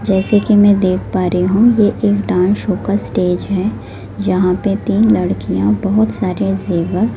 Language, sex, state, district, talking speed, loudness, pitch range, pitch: Hindi, female, Delhi, New Delhi, 175 wpm, -14 LUFS, 180-205 Hz, 195 Hz